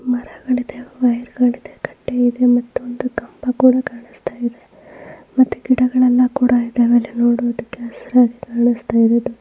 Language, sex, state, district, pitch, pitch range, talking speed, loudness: Kannada, female, Karnataka, Mysore, 245 Hz, 240-255 Hz, 115 wpm, -17 LUFS